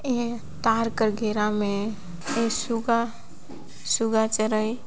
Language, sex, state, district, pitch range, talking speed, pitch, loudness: Sadri, female, Chhattisgarh, Jashpur, 215-230 Hz, 110 wpm, 225 Hz, -25 LUFS